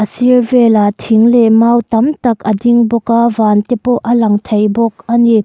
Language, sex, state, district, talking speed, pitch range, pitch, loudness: Mizo, female, Mizoram, Aizawl, 220 wpm, 220-240 Hz, 230 Hz, -11 LUFS